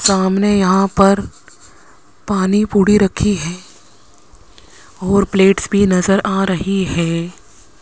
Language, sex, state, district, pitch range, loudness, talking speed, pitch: Hindi, male, Rajasthan, Jaipur, 165-200 Hz, -15 LUFS, 105 wpm, 190 Hz